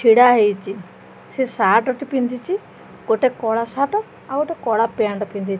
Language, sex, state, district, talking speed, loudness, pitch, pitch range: Odia, female, Odisha, Khordha, 150 wpm, -19 LUFS, 235 Hz, 220-265 Hz